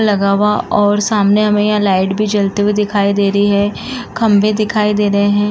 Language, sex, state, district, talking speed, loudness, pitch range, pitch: Hindi, female, Uttar Pradesh, Budaun, 205 wpm, -14 LUFS, 200-210 Hz, 205 Hz